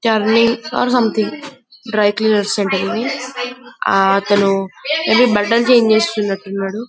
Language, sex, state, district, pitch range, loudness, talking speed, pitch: Telugu, male, Telangana, Karimnagar, 200-240 Hz, -15 LUFS, 115 wpm, 220 Hz